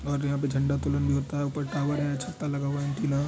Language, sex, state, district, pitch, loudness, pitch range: Hindi, male, Bihar, Madhepura, 140 Hz, -28 LUFS, 140-145 Hz